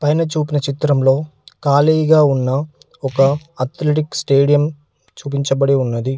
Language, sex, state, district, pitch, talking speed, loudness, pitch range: Telugu, male, Telangana, Hyderabad, 140 Hz, 95 wpm, -16 LUFS, 135-150 Hz